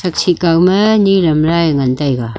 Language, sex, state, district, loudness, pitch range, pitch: Wancho, female, Arunachal Pradesh, Longding, -12 LUFS, 145-185 Hz, 170 Hz